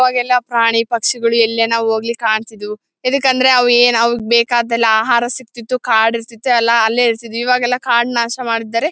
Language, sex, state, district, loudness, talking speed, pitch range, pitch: Kannada, female, Karnataka, Bellary, -14 LUFS, 155 wpm, 230-245 Hz, 235 Hz